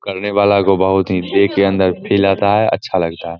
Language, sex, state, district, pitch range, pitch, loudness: Hindi, male, Bihar, Begusarai, 95-100 Hz, 95 Hz, -15 LUFS